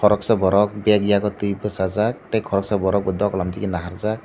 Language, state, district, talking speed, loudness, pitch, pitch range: Kokborok, Tripura, Dhalai, 185 wpm, -21 LUFS, 100 Hz, 95-105 Hz